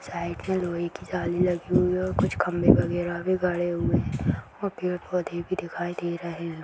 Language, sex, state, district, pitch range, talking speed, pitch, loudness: Hindi, female, Bihar, Purnia, 170-180 Hz, 210 wpm, 175 Hz, -26 LUFS